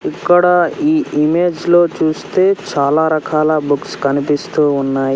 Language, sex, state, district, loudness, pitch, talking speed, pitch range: Telugu, male, Andhra Pradesh, Sri Satya Sai, -14 LUFS, 155 Hz, 115 wpm, 145-175 Hz